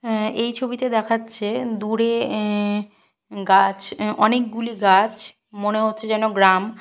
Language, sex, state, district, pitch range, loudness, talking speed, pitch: Bengali, female, West Bengal, Purulia, 205-230 Hz, -20 LUFS, 125 wpm, 215 Hz